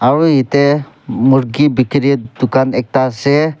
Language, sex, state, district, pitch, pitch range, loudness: Nagamese, male, Nagaland, Kohima, 135 Hz, 130-145 Hz, -13 LUFS